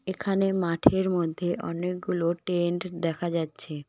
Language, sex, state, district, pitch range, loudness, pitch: Bengali, female, West Bengal, Cooch Behar, 170-185 Hz, -27 LUFS, 175 Hz